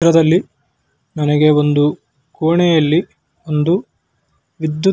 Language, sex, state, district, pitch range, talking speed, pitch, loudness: Kannada, male, Karnataka, Belgaum, 150-165 Hz, 85 wpm, 155 Hz, -15 LUFS